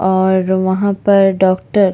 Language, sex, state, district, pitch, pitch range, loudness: Hindi, female, Chhattisgarh, Bastar, 190 Hz, 185-195 Hz, -13 LUFS